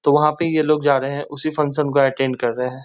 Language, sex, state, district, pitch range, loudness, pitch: Hindi, male, West Bengal, Kolkata, 135-150 Hz, -19 LUFS, 145 Hz